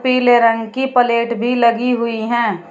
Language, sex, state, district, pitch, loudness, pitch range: Hindi, female, Uttar Pradesh, Shamli, 235 Hz, -15 LUFS, 230-245 Hz